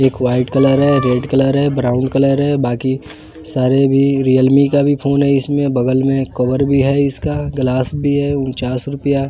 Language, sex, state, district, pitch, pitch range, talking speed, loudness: Hindi, male, Bihar, West Champaran, 135 Hz, 130-140 Hz, 200 wpm, -15 LUFS